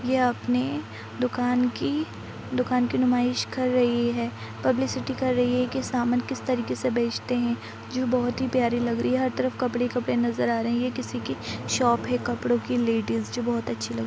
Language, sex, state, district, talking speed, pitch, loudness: Hindi, female, Uttar Pradesh, Budaun, 215 wpm, 240 Hz, -26 LUFS